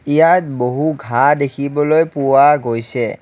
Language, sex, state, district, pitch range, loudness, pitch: Assamese, male, Assam, Kamrup Metropolitan, 130-155 Hz, -15 LUFS, 140 Hz